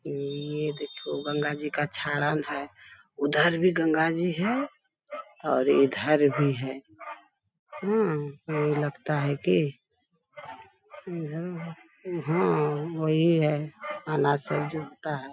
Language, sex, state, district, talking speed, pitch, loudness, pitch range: Hindi, female, Bihar, Bhagalpur, 115 wpm, 150 Hz, -27 LUFS, 145-165 Hz